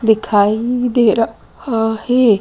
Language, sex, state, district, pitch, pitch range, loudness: Hindi, female, Madhya Pradesh, Bhopal, 225 Hz, 220-245 Hz, -15 LUFS